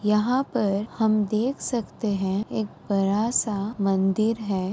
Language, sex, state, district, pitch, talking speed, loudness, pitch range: Hindi, female, Uttar Pradesh, Muzaffarnagar, 215 Hz, 140 wpm, -25 LUFS, 200-225 Hz